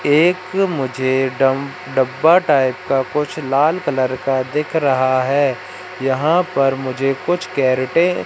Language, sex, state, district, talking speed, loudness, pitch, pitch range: Hindi, male, Madhya Pradesh, Katni, 140 wpm, -17 LUFS, 140 Hz, 130-165 Hz